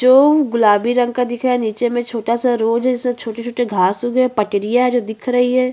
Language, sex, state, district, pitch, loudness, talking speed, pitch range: Hindi, female, Chhattisgarh, Bastar, 240 Hz, -16 LUFS, 115 wpm, 225-250 Hz